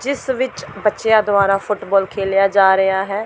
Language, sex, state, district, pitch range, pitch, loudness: Punjabi, female, Delhi, New Delhi, 195-215 Hz, 200 Hz, -16 LUFS